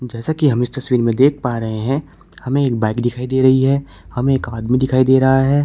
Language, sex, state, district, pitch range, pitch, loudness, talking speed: Hindi, male, Uttar Pradesh, Shamli, 120-135 Hz, 130 Hz, -17 LUFS, 255 wpm